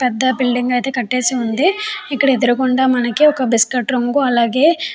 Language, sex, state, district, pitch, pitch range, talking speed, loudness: Telugu, female, Andhra Pradesh, Chittoor, 255 Hz, 245-275 Hz, 160 wpm, -15 LUFS